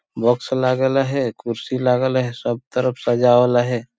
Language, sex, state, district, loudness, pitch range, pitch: Sadri, male, Chhattisgarh, Jashpur, -19 LUFS, 120-130 Hz, 125 Hz